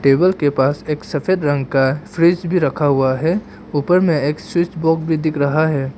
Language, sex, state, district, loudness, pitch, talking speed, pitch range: Hindi, male, Arunachal Pradesh, Papum Pare, -17 LUFS, 150 Hz, 210 wpm, 140-170 Hz